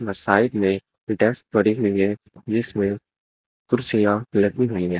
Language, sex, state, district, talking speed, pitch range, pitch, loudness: Hindi, male, Uttar Pradesh, Lucknow, 130 wpm, 100-120 Hz, 105 Hz, -21 LUFS